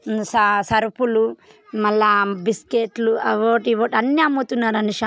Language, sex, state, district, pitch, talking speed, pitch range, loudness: Telugu, female, Telangana, Karimnagar, 225 Hz, 120 wpm, 215-235 Hz, -19 LUFS